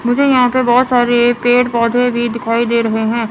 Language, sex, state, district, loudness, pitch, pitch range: Hindi, female, Chandigarh, Chandigarh, -13 LUFS, 240 Hz, 235-245 Hz